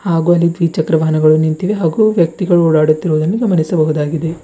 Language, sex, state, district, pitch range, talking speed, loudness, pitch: Kannada, female, Karnataka, Bidar, 155-175 Hz, 120 wpm, -13 LUFS, 165 Hz